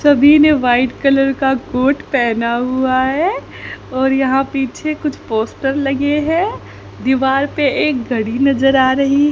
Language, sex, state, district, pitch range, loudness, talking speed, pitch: Hindi, female, Haryana, Charkhi Dadri, 260-290 Hz, -15 LUFS, 150 wpm, 270 Hz